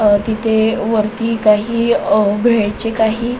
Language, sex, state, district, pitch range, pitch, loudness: Marathi, female, Maharashtra, Solapur, 210-230 Hz, 220 Hz, -15 LUFS